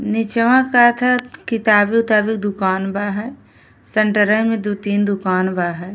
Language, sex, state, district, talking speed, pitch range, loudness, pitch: Bhojpuri, female, Uttar Pradesh, Gorakhpur, 150 wpm, 205-230 Hz, -17 LUFS, 215 Hz